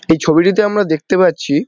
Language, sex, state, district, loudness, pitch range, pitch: Bengali, male, West Bengal, Dakshin Dinajpur, -13 LUFS, 160-210 Hz, 185 Hz